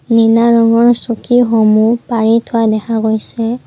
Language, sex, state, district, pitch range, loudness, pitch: Assamese, female, Assam, Kamrup Metropolitan, 225-235 Hz, -12 LUFS, 230 Hz